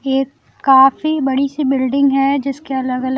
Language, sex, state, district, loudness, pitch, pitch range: Hindi, female, Bihar, Kaimur, -15 LUFS, 270 Hz, 265-280 Hz